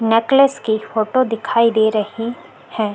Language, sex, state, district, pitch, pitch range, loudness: Hindi, female, Chhattisgarh, Korba, 225 Hz, 220-240 Hz, -17 LUFS